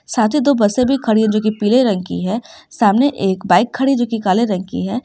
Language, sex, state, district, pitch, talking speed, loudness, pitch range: Hindi, female, Uttar Pradesh, Ghazipur, 220 Hz, 260 wpm, -16 LUFS, 205-255 Hz